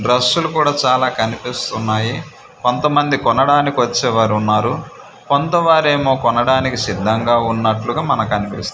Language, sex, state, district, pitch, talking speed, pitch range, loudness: Telugu, male, Andhra Pradesh, Manyam, 125 Hz, 110 wpm, 110-145 Hz, -16 LUFS